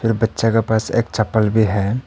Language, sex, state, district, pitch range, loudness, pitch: Hindi, male, Arunachal Pradesh, Papum Pare, 110-115 Hz, -18 LUFS, 110 Hz